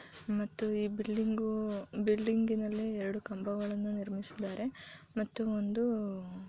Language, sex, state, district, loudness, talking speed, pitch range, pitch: Kannada, female, Karnataka, Chamarajanagar, -35 LUFS, 120 wpm, 200-220 Hz, 210 Hz